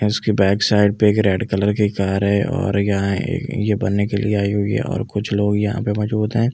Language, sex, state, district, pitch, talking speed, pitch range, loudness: Hindi, male, Delhi, New Delhi, 105 Hz, 265 wpm, 100-110 Hz, -19 LUFS